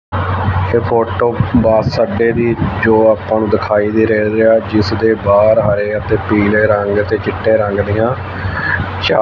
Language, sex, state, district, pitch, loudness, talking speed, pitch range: Punjabi, male, Punjab, Fazilka, 105 Hz, -13 LUFS, 155 wpm, 100-110 Hz